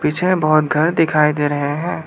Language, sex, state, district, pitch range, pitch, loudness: Hindi, male, Arunachal Pradesh, Lower Dibang Valley, 150-165 Hz, 155 Hz, -16 LUFS